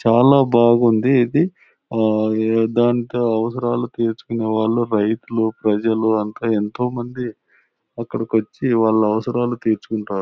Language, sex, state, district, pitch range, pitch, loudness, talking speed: Telugu, male, Andhra Pradesh, Anantapur, 110-120 Hz, 115 Hz, -19 LUFS, 110 wpm